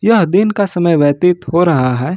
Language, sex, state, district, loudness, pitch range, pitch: Hindi, male, Jharkhand, Ranchi, -13 LUFS, 150-195 Hz, 175 Hz